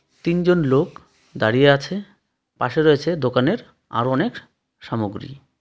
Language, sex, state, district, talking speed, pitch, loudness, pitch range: Bengali, male, West Bengal, Darjeeling, 105 wpm, 140 Hz, -20 LUFS, 125-170 Hz